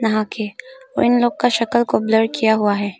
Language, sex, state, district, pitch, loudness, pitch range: Hindi, female, Arunachal Pradesh, Papum Pare, 225 Hz, -18 LUFS, 215-240 Hz